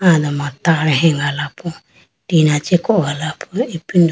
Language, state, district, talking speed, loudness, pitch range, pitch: Idu Mishmi, Arunachal Pradesh, Lower Dibang Valley, 100 wpm, -16 LUFS, 150-170 Hz, 160 Hz